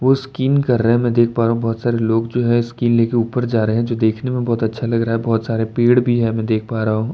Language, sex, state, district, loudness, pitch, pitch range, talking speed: Hindi, male, Delhi, New Delhi, -17 LUFS, 115 Hz, 115-120 Hz, 335 wpm